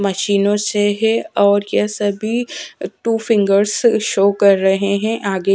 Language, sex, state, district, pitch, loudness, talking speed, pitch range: Hindi, female, Punjab, Fazilka, 205 Hz, -16 LUFS, 140 wpm, 200-220 Hz